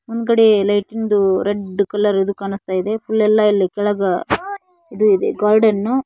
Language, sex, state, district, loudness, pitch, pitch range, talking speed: Kannada, female, Karnataka, Koppal, -17 LUFS, 210 Hz, 200-220 Hz, 150 wpm